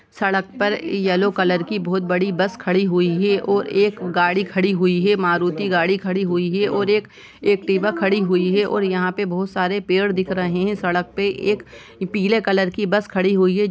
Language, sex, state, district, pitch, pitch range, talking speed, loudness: Hindi, female, Chhattisgarh, Sukma, 190 Hz, 180-200 Hz, 210 wpm, -19 LUFS